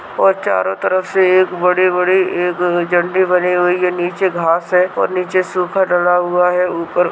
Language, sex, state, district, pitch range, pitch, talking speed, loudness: Hindi, male, Chhattisgarh, Kabirdham, 175-185 Hz, 180 Hz, 175 wpm, -15 LUFS